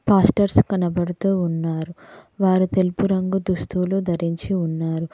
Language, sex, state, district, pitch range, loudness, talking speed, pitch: Telugu, female, Telangana, Mahabubabad, 170-195 Hz, -21 LUFS, 105 wpm, 185 Hz